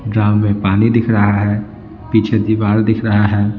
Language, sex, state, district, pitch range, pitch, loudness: Hindi, male, Bihar, Patna, 105-110 Hz, 105 Hz, -14 LUFS